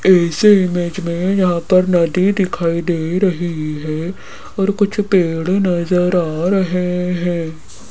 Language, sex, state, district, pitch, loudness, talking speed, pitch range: Hindi, female, Rajasthan, Jaipur, 180 Hz, -16 LUFS, 130 wpm, 170-190 Hz